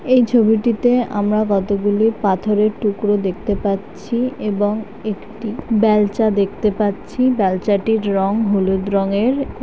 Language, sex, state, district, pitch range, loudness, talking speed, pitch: Bengali, female, West Bengal, Jhargram, 200-220 Hz, -18 LUFS, 110 wpm, 210 Hz